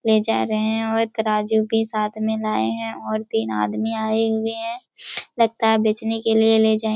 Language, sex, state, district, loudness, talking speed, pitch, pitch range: Hindi, female, Chhattisgarh, Raigarh, -21 LUFS, 205 wpm, 220 Hz, 210-225 Hz